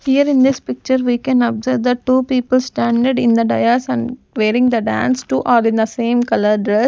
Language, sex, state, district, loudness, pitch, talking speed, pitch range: English, female, Punjab, Kapurthala, -16 LUFS, 245 Hz, 220 wpm, 235-255 Hz